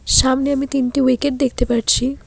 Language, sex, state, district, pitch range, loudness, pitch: Bengali, female, West Bengal, Alipurduar, 250-275 Hz, -17 LUFS, 265 Hz